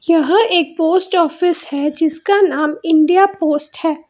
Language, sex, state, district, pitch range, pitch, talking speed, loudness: Hindi, female, Karnataka, Bangalore, 310-365 Hz, 330 Hz, 145 wpm, -15 LUFS